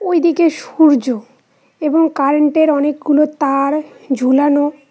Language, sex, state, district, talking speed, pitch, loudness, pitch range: Bengali, female, West Bengal, Cooch Behar, 110 wpm, 295 Hz, -14 LUFS, 275-315 Hz